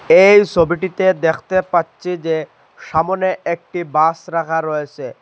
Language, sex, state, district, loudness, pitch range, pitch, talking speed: Bengali, male, Assam, Hailakandi, -16 LUFS, 160-185 Hz, 170 Hz, 115 wpm